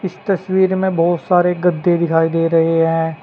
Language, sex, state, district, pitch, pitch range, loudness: Hindi, male, Uttar Pradesh, Saharanpur, 175 Hz, 165-185 Hz, -16 LUFS